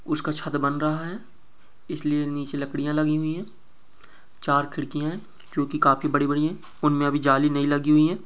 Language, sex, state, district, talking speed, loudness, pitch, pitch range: Hindi, male, Chhattisgarh, Bastar, 180 wpm, -24 LUFS, 150 Hz, 145-155 Hz